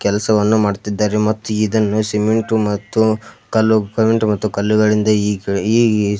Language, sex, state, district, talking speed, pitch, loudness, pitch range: Kannada, male, Karnataka, Belgaum, 85 wpm, 110 Hz, -16 LUFS, 105-110 Hz